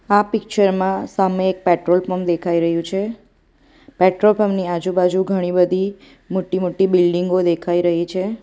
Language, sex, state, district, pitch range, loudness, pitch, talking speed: Gujarati, female, Gujarat, Valsad, 175-195 Hz, -18 LUFS, 185 Hz, 150 wpm